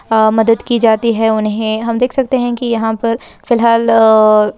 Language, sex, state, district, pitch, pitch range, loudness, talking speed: Hindi, female, Uttarakhand, Uttarkashi, 225 Hz, 220-235 Hz, -12 LUFS, 225 wpm